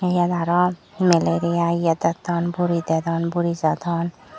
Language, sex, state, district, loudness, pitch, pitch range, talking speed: Chakma, female, Tripura, Dhalai, -21 LUFS, 170 Hz, 165-175 Hz, 125 wpm